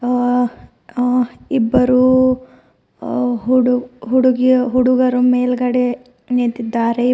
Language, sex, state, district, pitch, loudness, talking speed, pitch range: Kannada, female, Karnataka, Bidar, 250 Hz, -16 LUFS, 75 wpm, 245-255 Hz